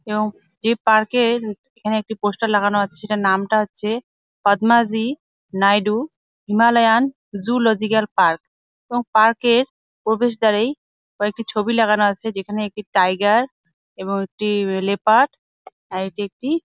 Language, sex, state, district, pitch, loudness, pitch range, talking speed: Bengali, female, West Bengal, Jalpaiguri, 215 Hz, -19 LUFS, 205-235 Hz, 130 wpm